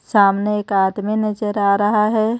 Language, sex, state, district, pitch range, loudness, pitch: Hindi, female, Jharkhand, Ranchi, 200-215 Hz, -17 LUFS, 210 Hz